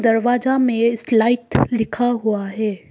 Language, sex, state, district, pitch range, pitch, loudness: Hindi, female, Arunachal Pradesh, Papum Pare, 220-245 Hz, 230 Hz, -18 LUFS